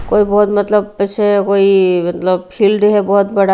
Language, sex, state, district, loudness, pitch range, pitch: Hindi, female, Haryana, Rohtak, -13 LUFS, 195-205 Hz, 200 Hz